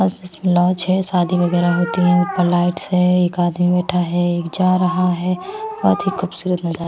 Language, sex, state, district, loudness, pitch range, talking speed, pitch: Hindi, female, Himachal Pradesh, Shimla, -17 LUFS, 175-185 Hz, 210 wpm, 180 Hz